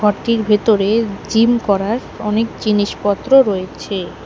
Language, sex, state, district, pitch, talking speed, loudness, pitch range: Bengali, female, West Bengal, Alipurduar, 210 Hz, 100 wpm, -16 LUFS, 205-225 Hz